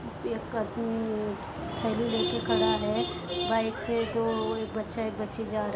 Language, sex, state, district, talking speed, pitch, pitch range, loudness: Hindi, female, Uttar Pradesh, Etah, 165 wpm, 220 Hz, 210-225 Hz, -30 LUFS